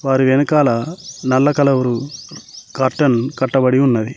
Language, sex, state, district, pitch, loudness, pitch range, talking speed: Telugu, male, Telangana, Mahabubabad, 130 Hz, -16 LUFS, 125-140 Hz, 100 wpm